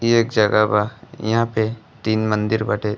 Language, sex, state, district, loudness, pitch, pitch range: Bhojpuri, male, Uttar Pradesh, Gorakhpur, -20 LUFS, 110 Hz, 105-115 Hz